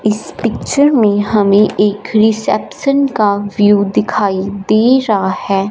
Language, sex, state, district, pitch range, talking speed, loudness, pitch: Hindi, female, Punjab, Fazilka, 200-220 Hz, 125 wpm, -13 LUFS, 205 Hz